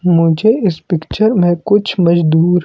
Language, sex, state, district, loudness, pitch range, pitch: Hindi, male, Himachal Pradesh, Shimla, -13 LUFS, 170-205 Hz, 175 Hz